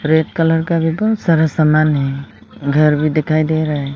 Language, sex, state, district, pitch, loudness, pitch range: Hindi, female, Arunachal Pradesh, Lower Dibang Valley, 155 Hz, -15 LUFS, 145-160 Hz